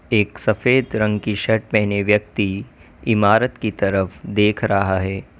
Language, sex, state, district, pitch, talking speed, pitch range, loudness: Hindi, male, Uttar Pradesh, Lalitpur, 105 Hz, 145 wpm, 100-110 Hz, -19 LUFS